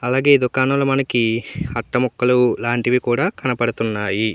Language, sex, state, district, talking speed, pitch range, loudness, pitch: Telugu, male, Andhra Pradesh, Anantapur, 110 wpm, 115-130 Hz, -18 LUFS, 125 Hz